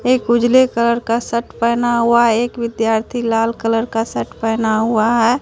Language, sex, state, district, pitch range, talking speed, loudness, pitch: Hindi, female, Bihar, Katihar, 225-235 Hz, 190 wpm, -16 LUFS, 235 Hz